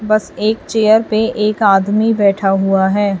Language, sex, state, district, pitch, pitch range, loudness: Hindi, female, Chhattisgarh, Raipur, 210 Hz, 195-215 Hz, -14 LUFS